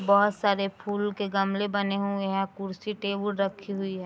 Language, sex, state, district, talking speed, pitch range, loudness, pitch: Hindi, female, Bihar, Araria, 175 wpm, 195-205 Hz, -28 LUFS, 200 Hz